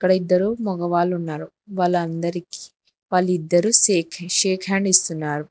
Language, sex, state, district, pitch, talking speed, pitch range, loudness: Telugu, female, Telangana, Hyderabad, 180 Hz, 110 wpm, 170-190 Hz, -20 LUFS